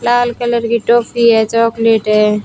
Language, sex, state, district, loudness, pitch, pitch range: Hindi, female, Rajasthan, Bikaner, -13 LUFS, 230 Hz, 220-240 Hz